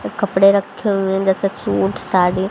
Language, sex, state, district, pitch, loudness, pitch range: Hindi, female, Haryana, Rohtak, 195 Hz, -17 LUFS, 185-200 Hz